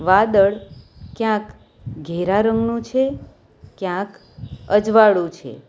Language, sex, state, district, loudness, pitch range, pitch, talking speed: Gujarati, female, Gujarat, Valsad, -18 LUFS, 170-220 Hz, 195 Hz, 85 wpm